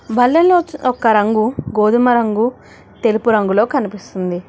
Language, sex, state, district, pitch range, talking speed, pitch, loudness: Telugu, female, Telangana, Hyderabad, 210-245 Hz, 105 wpm, 225 Hz, -15 LUFS